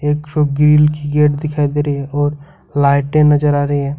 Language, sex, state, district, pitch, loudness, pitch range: Hindi, male, Jharkhand, Ranchi, 145 Hz, -14 LUFS, 145-150 Hz